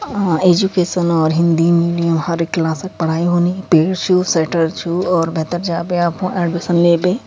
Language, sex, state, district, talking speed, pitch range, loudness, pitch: Hindi, female, Uttarakhand, Uttarkashi, 180 wpm, 165-180 Hz, -16 LUFS, 170 Hz